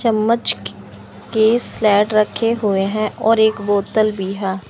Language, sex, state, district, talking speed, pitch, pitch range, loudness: Hindi, male, Chandigarh, Chandigarh, 140 wpm, 210 Hz, 190-220 Hz, -17 LUFS